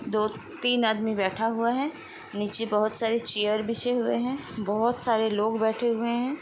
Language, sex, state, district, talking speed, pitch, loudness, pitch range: Hindi, female, Chhattisgarh, Sukma, 195 wpm, 225 Hz, -27 LUFS, 215-240 Hz